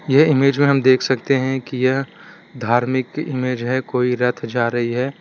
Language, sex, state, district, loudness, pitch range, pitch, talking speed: Hindi, male, Gujarat, Valsad, -18 LUFS, 125-140 Hz, 130 Hz, 195 wpm